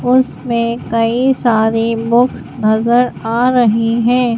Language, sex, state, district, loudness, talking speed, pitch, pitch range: Hindi, female, Madhya Pradesh, Bhopal, -14 LUFS, 125 wpm, 235 Hz, 230-245 Hz